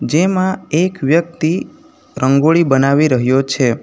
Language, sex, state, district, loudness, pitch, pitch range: Gujarati, male, Gujarat, Navsari, -14 LUFS, 160 Hz, 135-185 Hz